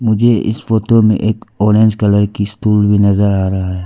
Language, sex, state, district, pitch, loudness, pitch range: Hindi, female, Arunachal Pradesh, Lower Dibang Valley, 105 Hz, -13 LUFS, 100-110 Hz